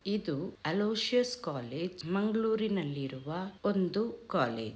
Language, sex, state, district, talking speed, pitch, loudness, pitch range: Kannada, female, Karnataka, Dakshina Kannada, 75 wpm, 190 Hz, -33 LUFS, 150-215 Hz